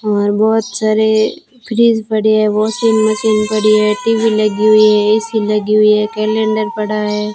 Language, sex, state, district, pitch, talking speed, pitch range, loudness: Hindi, female, Rajasthan, Bikaner, 215 Hz, 170 wpm, 215-220 Hz, -13 LUFS